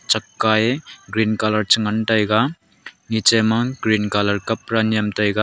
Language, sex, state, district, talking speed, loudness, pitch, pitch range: Wancho, male, Arunachal Pradesh, Longding, 130 wpm, -19 LUFS, 110 Hz, 105-115 Hz